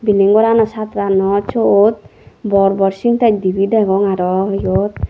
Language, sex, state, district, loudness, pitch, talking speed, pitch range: Chakma, female, Tripura, Dhalai, -14 LUFS, 200 Hz, 130 wpm, 195-215 Hz